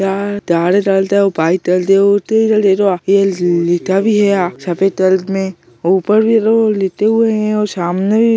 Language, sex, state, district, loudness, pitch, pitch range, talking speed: Hindi, male, Bihar, Jamui, -13 LUFS, 195 Hz, 185-210 Hz, 100 wpm